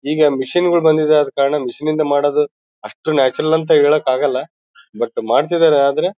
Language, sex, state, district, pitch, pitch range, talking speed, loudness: Kannada, male, Karnataka, Bellary, 150 Hz, 145-155 Hz, 155 wpm, -16 LUFS